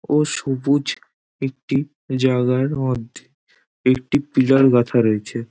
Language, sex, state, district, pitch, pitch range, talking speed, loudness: Bengali, male, West Bengal, Dakshin Dinajpur, 130 Hz, 125-135 Hz, 100 wpm, -19 LUFS